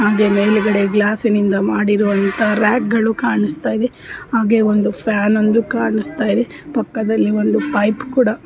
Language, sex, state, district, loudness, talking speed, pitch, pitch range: Kannada, female, Karnataka, Dharwad, -16 LUFS, 130 wpm, 215 Hz, 205-225 Hz